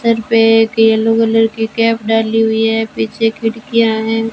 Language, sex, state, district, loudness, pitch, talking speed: Hindi, female, Rajasthan, Bikaner, -13 LUFS, 225 Hz, 180 wpm